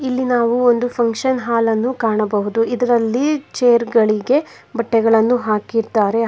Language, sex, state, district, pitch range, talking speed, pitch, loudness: Kannada, female, Karnataka, Bangalore, 225-245 Hz, 115 wpm, 235 Hz, -17 LUFS